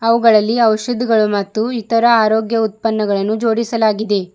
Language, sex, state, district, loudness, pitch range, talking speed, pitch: Kannada, female, Karnataka, Bidar, -15 LUFS, 215-230 Hz, 95 wpm, 220 Hz